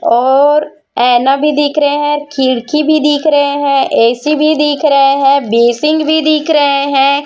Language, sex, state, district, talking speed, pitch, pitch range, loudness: Hindi, female, Chhattisgarh, Raipur, 175 wpm, 290 Hz, 275-300 Hz, -11 LUFS